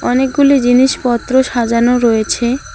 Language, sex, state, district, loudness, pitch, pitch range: Bengali, female, West Bengal, Alipurduar, -12 LUFS, 245 Hz, 240-260 Hz